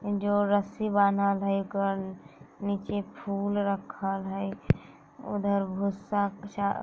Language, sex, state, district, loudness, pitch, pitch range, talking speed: Bajjika, female, Bihar, Vaishali, -29 LUFS, 200 Hz, 195-205 Hz, 115 wpm